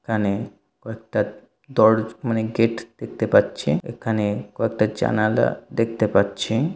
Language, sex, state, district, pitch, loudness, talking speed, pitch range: Bengali, male, West Bengal, North 24 Parganas, 110 Hz, -22 LUFS, 115 wpm, 110-115 Hz